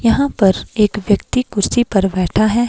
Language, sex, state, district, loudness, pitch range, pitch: Hindi, female, Himachal Pradesh, Shimla, -16 LUFS, 200-240 Hz, 215 Hz